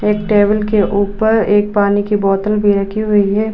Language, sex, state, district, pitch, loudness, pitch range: Hindi, female, Uttar Pradesh, Budaun, 205 Hz, -14 LUFS, 205-210 Hz